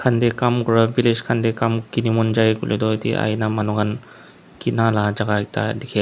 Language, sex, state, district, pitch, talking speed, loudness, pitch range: Nagamese, male, Nagaland, Dimapur, 115 Hz, 200 wpm, -20 LUFS, 110-115 Hz